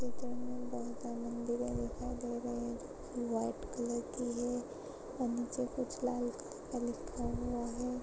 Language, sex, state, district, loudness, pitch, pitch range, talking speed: Hindi, female, Maharashtra, Pune, -40 LUFS, 245 Hz, 240-250 Hz, 165 wpm